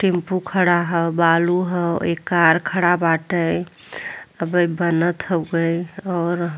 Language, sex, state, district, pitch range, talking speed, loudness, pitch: Bhojpuri, female, Uttar Pradesh, Deoria, 170-180 Hz, 130 wpm, -19 LUFS, 175 Hz